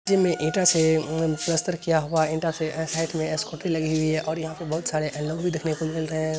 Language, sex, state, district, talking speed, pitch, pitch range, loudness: Hindi, male, Bihar, Lakhisarai, 235 wpm, 160 Hz, 155-165 Hz, -25 LUFS